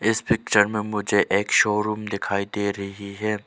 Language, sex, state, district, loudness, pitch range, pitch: Hindi, male, Arunachal Pradesh, Lower Dibang Valley, -23 LUFS, 100-105 Hz, 105 Hz